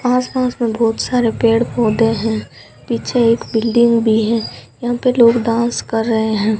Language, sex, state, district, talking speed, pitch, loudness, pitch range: Hindi, female, Rajasthan, Bikaner, 180 wpm, 230 Hz, -16 LUFS, 225-240 Hz